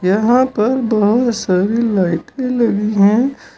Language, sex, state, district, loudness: Hindi, male, Uttar Pradesh, Lucknow, -15 LUFS